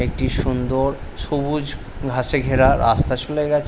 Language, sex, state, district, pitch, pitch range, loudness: Bengali, male, West Bengal, Paschim Medinipur, 135 Hz, 130-145 Hz, -20 LUFS